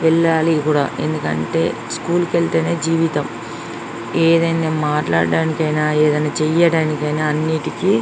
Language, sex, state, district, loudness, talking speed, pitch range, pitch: Telugu, female, Andhra Pradesh, Srikakulam, -18 LUFS, 110 wpm, 150-165 Hz, 155 Hz